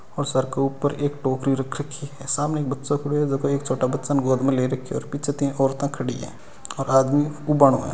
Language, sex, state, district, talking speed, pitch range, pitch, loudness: Hindi, male, Rajasthan, Nagaur, 255 wpm, 135-145 Hz, 140 Hz, -23 LUFS